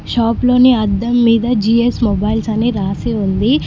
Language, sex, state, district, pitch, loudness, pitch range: Telugu, female, Telangana, Mahabubabad, 230 Hz, -14 LUFS, 215-240 Hz